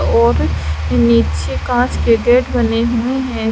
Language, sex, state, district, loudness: Hindi, female, Haryana, Charkhi Dadri, -15 LUFS